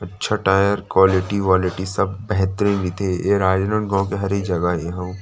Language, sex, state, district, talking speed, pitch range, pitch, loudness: Chhattisgarhi, male, Chhattisgarh, Rajnandgaon, 150 wpm, 95-100 Hz, 95 Hz, -20 LUFS